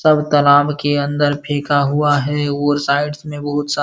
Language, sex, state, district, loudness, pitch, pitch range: Hindi, male, Bihar, Supaul, -16 LUFS, 145 Hz, 145-150 Hz